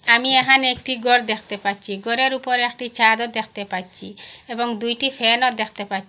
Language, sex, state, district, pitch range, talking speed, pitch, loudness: Bengali, female, Assam, Hailakandi, 215-250 Hz, 175 wpm, 235 Hz, -19 LUFS